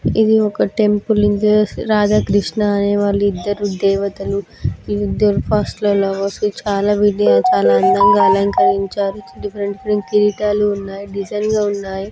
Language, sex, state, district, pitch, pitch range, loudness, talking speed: Telugu, female, Telangana, Nalgonda, 205 Hz, 195-210 Hz, -16 LUFS, 80 wpm